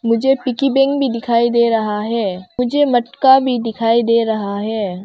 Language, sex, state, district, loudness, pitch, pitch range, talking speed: Hindi, female, Arunachal Pradesh, Longding, -16 LUFS, 235 Hz, 220-260 Hz, 180 wpm